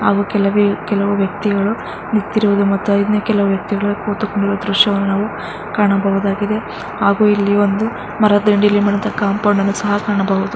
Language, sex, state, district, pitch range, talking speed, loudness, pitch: Kannada, female, Karnataka, Mysore, 200-210 Hz, 115 wpm, -16 LUFS, 205 Hz